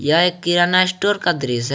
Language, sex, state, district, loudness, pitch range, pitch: Hindi, male, Jharkhand, Garhwa, -17 LUFS, 150-185 Hz, 175 Hz